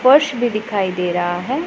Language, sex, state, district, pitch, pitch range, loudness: Hindi, female, Punjab, Pathankot, 215 Hz, 180-260 Hz, -18 LUFS